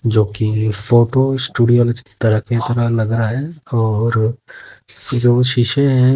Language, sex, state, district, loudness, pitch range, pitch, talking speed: Hindi, male, Haryana, Jhajjar, -15 LUFS, 110-125 Hz, 120 Hz, 145 wpm